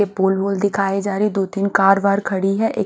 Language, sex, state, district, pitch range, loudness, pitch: Hindi, female, Haryana, Charkhi Dadri, 195-200 Hz, -18 LUFS, 195 Hz